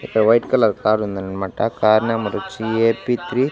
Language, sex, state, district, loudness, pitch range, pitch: Telugu, male, Andhra Pradesh, Annamaya, -19 LUFS, 105-115 Hz, 110 Hz